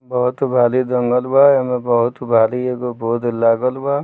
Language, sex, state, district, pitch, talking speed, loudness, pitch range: Bhojpuri, male, Bihar, Muzaffarpur, 125 Hz, 165 wpm, -16 LUFS, 120-130 Hz